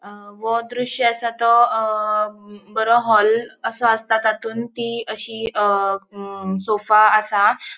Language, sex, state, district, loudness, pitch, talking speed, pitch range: Konkani, female, Goa, North and South Goa, -19 LUFS, 220 Hz, 125 wpm, 205-230 Hz